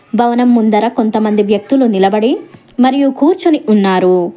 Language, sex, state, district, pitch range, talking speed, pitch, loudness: Telugu, female, Telangana, Hyderabad, 210-265 Hz, 110 wpm, 230 Hz, -12 LUFS